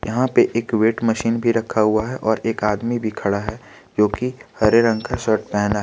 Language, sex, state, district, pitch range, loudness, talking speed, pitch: Hindi, male, Jharkhand, Garhwa, 105-115 Hz, -20 LUFS, 225 wpm, 110 Hz